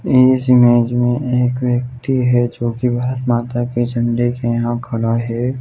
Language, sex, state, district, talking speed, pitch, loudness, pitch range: Hindi, male, Chhattisgarh, Bilaspur, 150 wpm, 120 Hz, -16 LUFS, 120-125 Hz